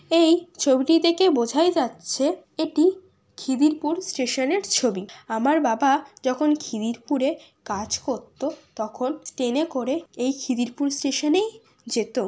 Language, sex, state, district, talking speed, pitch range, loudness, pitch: Bengali, female, West Bengal, Kolkata, 110 wpm, 255-325 Hz, -23 LUFS, 285 Hz